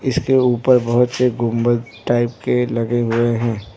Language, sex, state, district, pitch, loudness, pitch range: Hindi, male, Arunachal Pradesh, Lower Dibang Valley, 120 Hz, -17 LUFS, 115-125 Hz